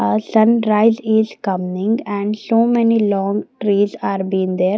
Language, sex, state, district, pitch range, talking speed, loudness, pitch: English, female, Maharashtra, Gondia, 195-220 Hz, 150 wpm, -17 LUFS, 205 Hz